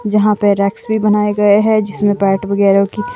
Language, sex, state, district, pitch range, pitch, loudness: Hindi, female, Himachal Pradesh, Shimla, 200-210 Hz, 205 Hz, -13 LUFS